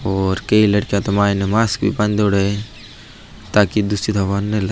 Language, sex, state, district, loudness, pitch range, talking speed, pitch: Marwari, male, Rajasthan, Nagaur, -17 LUFS, 100-105 Hz, 175 wpm, 105 Hz